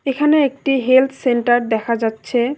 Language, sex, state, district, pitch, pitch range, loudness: Bengali, female, West Bengal, Alipurduar, 255 Hz, 240-270 Hz, -16 LUFS